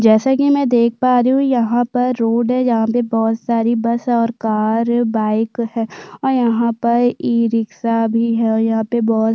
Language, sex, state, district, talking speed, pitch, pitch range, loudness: Hindi, female, Chhattisgarh, Sukma, 190 wpm, 235 Hz, 225-245 Hz, -16 LUFS